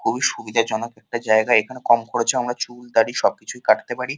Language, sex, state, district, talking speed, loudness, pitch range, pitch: Bengali, male, West Bengal, Kolkata, 200 wpm, -20 LUFS, 115-120 Hz, 120 Hz